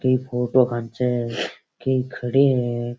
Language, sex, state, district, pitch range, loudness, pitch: Rajasthani, male, Rajasthan, Churu, 120-130 Hz, -22 LUFS, 125 Hz